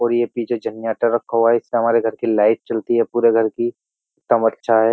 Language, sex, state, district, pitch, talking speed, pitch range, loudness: Hindi, male, Uttar Pradesh, Jyotiba Phule Nagar, 115 Hz, 245 wpm, 115-120 Hz, -18 LUFS